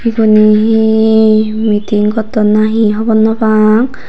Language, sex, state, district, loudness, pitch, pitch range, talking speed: Chakma, female, Tripura, Unakoti, -10 LUFS, 220 Hz, 215-220 Hz, 115 wpm